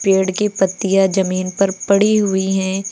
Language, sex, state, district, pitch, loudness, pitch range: Hindi, female, Uttar Pradesh, Lucknow, 195 Hz, -16 LUFS, 190-195 Hz